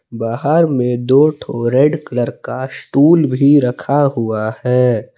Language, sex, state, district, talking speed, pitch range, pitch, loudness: Hindi, male, Jharkhand, Palamu, 140 wpm, 120-145 Hz, 130 Hz, -14 LUFS